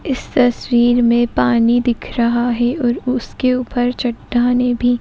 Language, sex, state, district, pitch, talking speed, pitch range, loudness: Hindi, female, Uttar Pradesh, Etah, 245 Hz, 155 wpm, 240-250 Hz, -16 LUFS